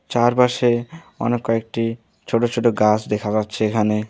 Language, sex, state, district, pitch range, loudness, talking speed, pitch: Bengali, male, West Bengal, Alipurduar, 110-120 Hz, -20 LUFS, 130 wpm, 115 Hz